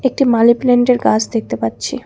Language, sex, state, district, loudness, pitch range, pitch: Bengali, female, West Bengal, Alipurduar, -14 LUFS, 215-250 Hz, 235 Hz